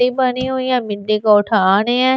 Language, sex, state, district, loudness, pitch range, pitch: Hindi, female, Delhi, New Delhi, -16 LUFS, 210-255 Hz, 245 Hz